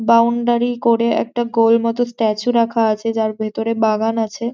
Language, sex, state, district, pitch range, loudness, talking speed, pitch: Bengali, female, West Bengal, Jhargram, 225-235 Hz, -17 LUFS, 160 wpm, 230 Hz